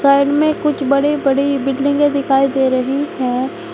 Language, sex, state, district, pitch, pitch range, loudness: Hindi, female, Uttar Pradesh, Shamli, 280 Hz, 270-290 Hz, -16 LUFS